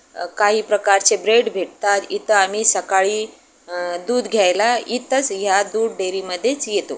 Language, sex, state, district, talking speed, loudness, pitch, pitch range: Marathi, female, Maharashtra, Aurangabad, 135 wpm, -18 LUFS, 205 Hz, 190-220 Hz